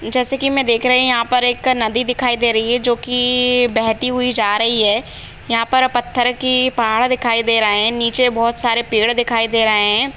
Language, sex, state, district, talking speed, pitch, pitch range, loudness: Hindi, female, Chhattisgarh, Bilaspur, 220 wpm, 240 Hz, 230-250 Hz, -15 LUFS